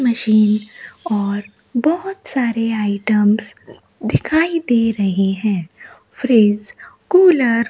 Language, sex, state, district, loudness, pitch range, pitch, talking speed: Hindi, female, Rajasthan, Bikaner, -17 LUFS, 210-260 Hz, 225 Hz, 95 wpm